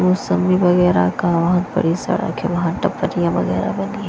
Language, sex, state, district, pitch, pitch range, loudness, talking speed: Hindi, female, Punjab, Kapurthala, 180 Hz, 170-180 Hz, -18 LUFS, 115 wpm